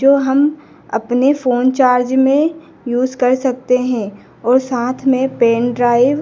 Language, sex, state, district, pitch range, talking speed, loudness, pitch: Hindi, female, Madhya Pradesh, Dhar, 245-270 Hz, 155 wpm, -15 LUFS, 255 Hz